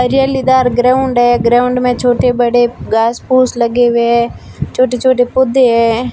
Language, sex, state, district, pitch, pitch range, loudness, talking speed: Hindi, female, Rajasthan, Barmer, 245 Hz, 240-255 Hz, -12 LUFS, 165 wpm